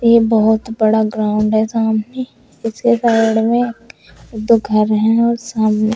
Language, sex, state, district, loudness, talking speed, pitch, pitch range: Hindi, female, Uttar Pradesh, Shamli, -15 LUFS, 140 wpm, 225 Hz, 215-235 Hz